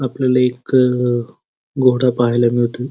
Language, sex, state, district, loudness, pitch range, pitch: Marathi, male, Maharashtra, Pune, -16 LUFS, 120-130 Hz, 125 Hz